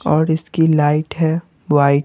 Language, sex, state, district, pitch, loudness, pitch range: Hindi, male, Bihar, Patna, 155 Hz, -17 LUFS, 150-160 Hz